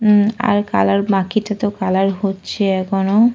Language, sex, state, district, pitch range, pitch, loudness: Bengali, female, Jharkhand, Jamtara, 190-210 Hz, 195 Hz, -17 LUFS